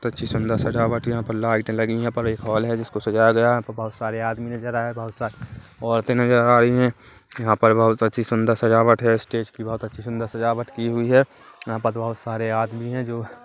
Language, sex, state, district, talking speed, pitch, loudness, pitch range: Hindi, male, Chhattisgarh, Kabirdham, 255 wpm, 115 Hz, -21 LUFS, 115-120 Hz